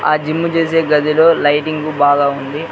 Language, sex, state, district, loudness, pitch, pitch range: Telugu, male, Telangana, Mahabubabad, -14 LUFS, 155 Hz, 145-165 Hz